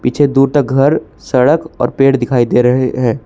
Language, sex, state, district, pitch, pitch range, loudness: Hindi, male, Jharkhand, Palamu, 135 Hz, 125-145 Hz, -12 LUFS